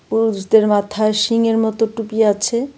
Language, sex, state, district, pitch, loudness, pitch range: Bengali, female, Tripura, West Tripura, 220 Hz, -16 LUFS, 210-225 Hz